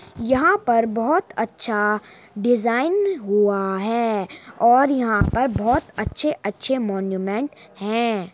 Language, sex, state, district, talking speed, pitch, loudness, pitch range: Hindi, female, Uttar Pradesh, Muzaffarnagar, 110 wpm, 230 Hz, -21 LUFS, 205-255 Hz